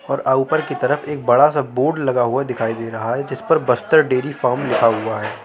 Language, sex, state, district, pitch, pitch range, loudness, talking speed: Hindi, male, Uttar Pradesh, Jalaun, 130 Hz, 115-145 Hz, -18 LUFS, 240 wpm